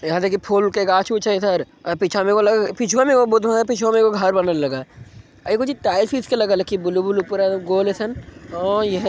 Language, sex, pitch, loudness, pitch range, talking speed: Maithili, male, 195 Hz, -19 LUFS, 185-215 Hz, 235 wpm